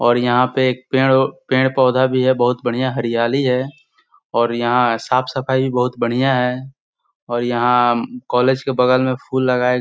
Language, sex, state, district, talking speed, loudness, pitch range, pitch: Hindi, male, Bihar, Sitamarhi, 185 wpm, -17 LUFS, 120-130 Hz, 125 Hz